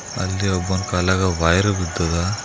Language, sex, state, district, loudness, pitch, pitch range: Kannada, male, Karnataka, Bidar, -20 LUFS, 95 Hz, 85-95 Hz